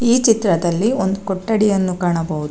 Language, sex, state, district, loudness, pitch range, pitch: Kannada, female, Karnataka, Bangalore, -17 LUFS, 175-220 Hz, 190 Hz